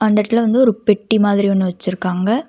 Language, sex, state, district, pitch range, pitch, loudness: Tamil, female, Karnataka, Bangalore, 195-225 Hz, 210 Hz, -16 LUFS